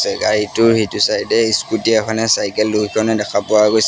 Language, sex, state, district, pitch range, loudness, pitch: Assamese, male, Assam, Sonitpur, 105-115 Hz, -15 LUFS, 110 Hz